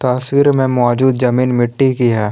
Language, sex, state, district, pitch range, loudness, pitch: Hindi, male, Jharkhand, Palamu, 120-130 Hz, -14 LUFS, 125 Hz